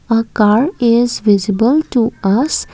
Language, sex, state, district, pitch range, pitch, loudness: English, female, Assam, Kamrup Metropolitan, 210-245 Hz, 230 Hz, -14 LUFS